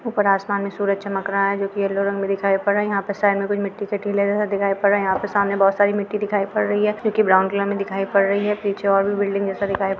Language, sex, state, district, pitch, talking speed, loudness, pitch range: Hindi, female, Chhattisgarh, Kabirdham, 200 Hz, 320 wpm, -20 LUFS, 195-205 Hz